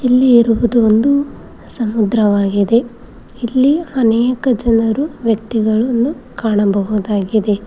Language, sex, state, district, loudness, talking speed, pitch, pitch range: Kannada, female, Karnataka, Koppal, -14 LUFS, 70 wpm, 230 Hz, 215-250 Hz